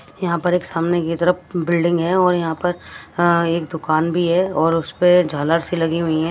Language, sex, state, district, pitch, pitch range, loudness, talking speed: Hindi, female, Maharashtra, Washim, 170 Hz, 165-180 Hz, -18 LUFS, 210 wpm